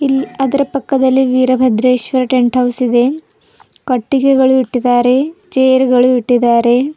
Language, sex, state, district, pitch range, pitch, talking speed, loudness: Kannada, female, Karnataka, Bidar, 245-270 Hz, 255 Hz, 105 wpm, -12 LUFS